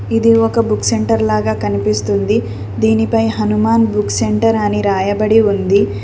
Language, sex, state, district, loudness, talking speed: Telugu, female, Telangana, Mahabubabad, -14 LUFS, 130 wpm